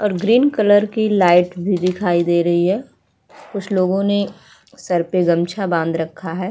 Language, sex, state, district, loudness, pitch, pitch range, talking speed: Hindi, female, Uttar Pradesh, Jalaun, -17 LUFS, 185 Hz, 175-205 Hz, 175 wpm